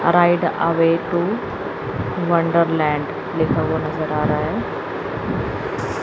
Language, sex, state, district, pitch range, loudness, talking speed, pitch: Hindi, female, Chandigarh, Chandigarh, 155-170 Hz, -20 LUFS, 110 wpm, 165 Hz